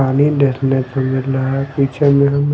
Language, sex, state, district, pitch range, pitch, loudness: Hindi, male, Delhi, New Delhi, 135-140 Hz, 135 Hz, -15 LUFS